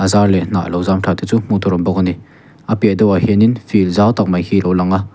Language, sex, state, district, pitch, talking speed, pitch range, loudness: Mizo, male, Mizoram, Aizawl, 100 Hz, 305 wpm, 90-105 Hz, -14 LUFS